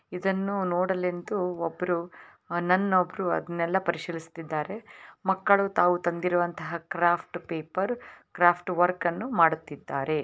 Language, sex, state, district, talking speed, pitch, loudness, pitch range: Kannada, female, Karnataka, Raichur, 95 wpm, 175 Hz, -27 LUFS, 170-190 Hz